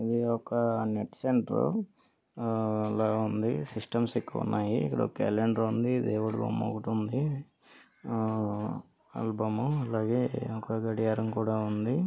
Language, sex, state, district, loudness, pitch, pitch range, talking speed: Telugu, male, Andhra Pradesh, Guntur, -31 LUFS, 110 Hz, 110-120 Hz, 120 wpm